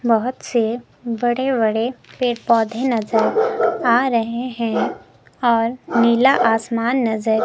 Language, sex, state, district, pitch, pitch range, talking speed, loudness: Hindi, female, Himachal Pradesh, Shimla, 235 Hz, 225-245 Hz, 115 wpm, -19 LUFS